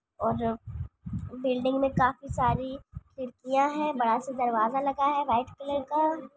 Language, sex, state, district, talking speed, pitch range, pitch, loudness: Hindi, female, Bihar, Sitamarhi, 140 wpm, 250-280 Hz, 270 Hz, -28 LUFS